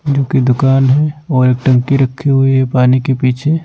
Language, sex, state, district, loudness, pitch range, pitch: Hindi, male, Punjab, Pathankot, -12 LUFS, 130-140 Hz, 135 Hz